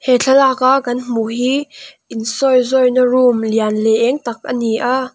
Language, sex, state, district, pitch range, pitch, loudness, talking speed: Mizo, female, Mizoram, Aizawl, 230-265 Hz, 250 Hz, -15 LUFS, 200 wpm